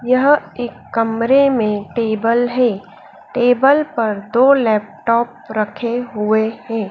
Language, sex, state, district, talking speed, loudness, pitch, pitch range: Hindi, female, Madhya Pradesh, Dhar, 115 wpm, -16 LUFS, 230 Hz, 220-250 Hz